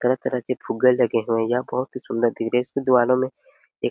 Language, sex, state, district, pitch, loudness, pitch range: Hindi, male, Chhattisgarh, Sarguja, 125 Hz, -22 LUFS, 115-130 Hz